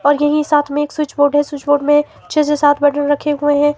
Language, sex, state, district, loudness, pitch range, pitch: Hindi, female, Himachal Pradesh, Shimla, -15 LUFS, 290-295 Hz, 290 Hz